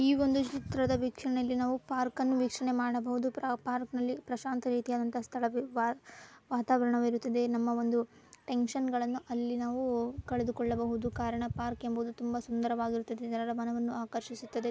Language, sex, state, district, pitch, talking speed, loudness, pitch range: Kannada, female, Karnataka, Bijapur, 240 Hz, 120 wpm, -33 LUFS, 235-250 Hz